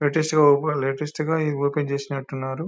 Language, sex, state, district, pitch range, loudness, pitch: Telugu, male, Telangana, Nalgonda, 140-155 Hz, -22 LUFS, 145 Hz